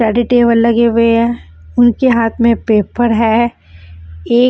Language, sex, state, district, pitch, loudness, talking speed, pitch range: Hindi, female, Bihar, Patna, 230 Hz, -12 LUFS, 160 wpm, 215-235 Hz